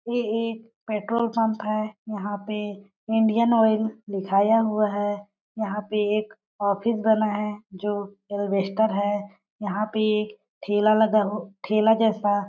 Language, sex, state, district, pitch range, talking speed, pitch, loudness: Hindi, female, Chhattisgarh, Balrampur, 205-220 Hz, 140 wpm, 210 Hz, -24 LUFS